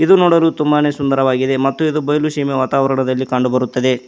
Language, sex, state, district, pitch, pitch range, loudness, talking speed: Kannada, male, Karnataka, Koppal, 135 Hz, 130-150 Hz, -15 LUFS, 160 wpm